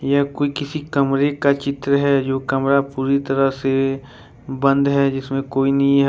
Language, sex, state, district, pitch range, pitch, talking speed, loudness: Hindi, male, Jharkhand, Ranchi, 135-140 Hz, 140 Hz, 185 wpm, -19 LUFS